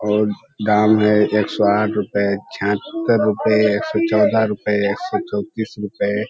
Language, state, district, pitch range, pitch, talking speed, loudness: Surjapuri, Bihar, Kishanganj, 105-110 Hz, 105 Hz, 160 wpm, -18 LUFS